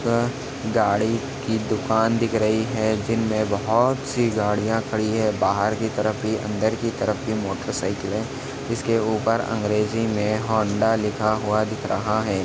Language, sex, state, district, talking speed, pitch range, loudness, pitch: Hindi, male, Chhattisgarh, Balrampur, 165 wpm, 105-115 Hz, -23 LUFS, 110 Hz